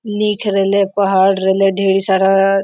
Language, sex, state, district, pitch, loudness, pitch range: Hindi, female, Jharkhand, Sahebganj, 195 Hz, -14 LUFS, 195-200 Hz